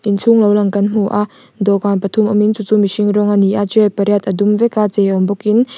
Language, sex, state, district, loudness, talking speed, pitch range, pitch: Mizo, female, Mizoram, Aizawl, -14 LUFS, 250 wpm, 200-215 Hz, 205 Hz